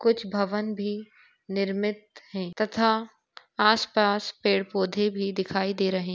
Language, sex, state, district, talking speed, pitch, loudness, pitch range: Hindi, female, Jharkhand, Sahebganj, 125 wpm, 205 Hz, -26 LUFS, 195-215 Hz